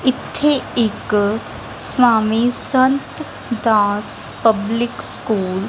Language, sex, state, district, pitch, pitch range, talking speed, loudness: Punjabi, female, Punjab, Kapurthala, 225 Hz, 210-250 Hz, 85 wpm, -18 LUFS